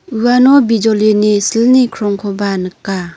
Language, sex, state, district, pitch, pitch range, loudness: Garo, female, Meghalaya, North Garo Hills, 215 Hz, 200-235 Hz, -12 LUFS